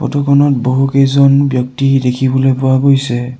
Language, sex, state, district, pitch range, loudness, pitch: Assamese, male, Assam, Sonitpur, 130-140 Hz, -12 LUFS, 135 Hz